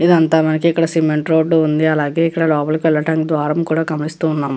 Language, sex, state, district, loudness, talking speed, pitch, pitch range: Telugu, female, Andhra Pradesh, Krishna, -16 LUFS, 185 wpm, 160 Hz, 155-165 Hz